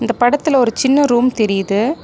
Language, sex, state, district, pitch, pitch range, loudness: Tamil, female, Tamil Nadu, Nilgiris, 245 Hz, 225-270 Hz, -14 LUFS